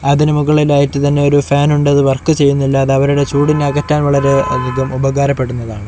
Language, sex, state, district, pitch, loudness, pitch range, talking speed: Malayalam, male, Kerala, Kozhikode, 140 Hz, -13 LUFS, 135-145 Hz, 165 wpm